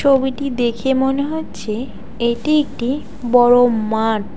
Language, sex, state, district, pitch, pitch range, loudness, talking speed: Bengali, female, West Bengal, Alipurduar, 245 Hz, 235-275 Hz, -17 LUFS, 110 wpm